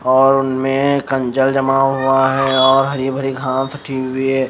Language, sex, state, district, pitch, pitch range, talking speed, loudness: Hindi, male, Chhattisgarh, Raipur, 135 Hz, 130-135 Hz, 175 wpm, -15 LUFS